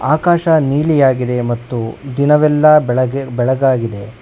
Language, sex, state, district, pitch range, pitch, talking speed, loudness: Kannada, male, Karnataka, Bangalore, 125-150 Hz, 135 Hz, 85 wpm, -14 LUFS